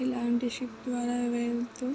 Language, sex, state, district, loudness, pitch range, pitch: Telugu, male, Andhra Pradesh, Chittoor, -31 LUFS, 240-250 Hz, 245 Hz